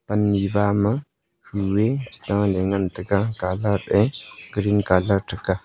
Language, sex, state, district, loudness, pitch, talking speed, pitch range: Wancho, male, Arunachal Pradesh, Longding, -22 LUFS, 100 Hz, 115 wpm, 100-105 Hz